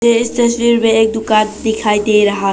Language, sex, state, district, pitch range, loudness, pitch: Hindi, female, Arunachal Pradesh, Papum Pare, 210-235 Hz, -13 LUFS, 220 Hz